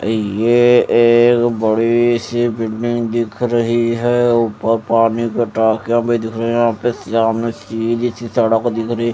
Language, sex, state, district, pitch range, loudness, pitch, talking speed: Hindi, male, Chandigarh, Chandigarh, 115-120 Hz, -15 LUFS, 115 Hz, 140 wpm